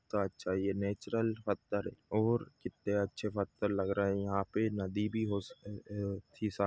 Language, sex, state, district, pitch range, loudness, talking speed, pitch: Hindi, male, Goa, North and South Goa, 100-105 Hz, -36 LUFS, 190 wpm, 100 Hz